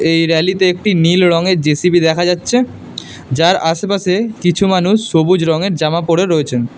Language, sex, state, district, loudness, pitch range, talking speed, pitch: Bengali, male, Karnataka, Bangalore, -13 LUFS, 165-185 Hz, 150 wpm, 175 Hz